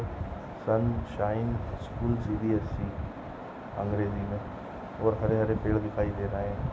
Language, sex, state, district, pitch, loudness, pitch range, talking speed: Hindi, male, Goa, North and South Goa, 105 Hz, -31 LUFS, 100-110 Hz, 115 wpm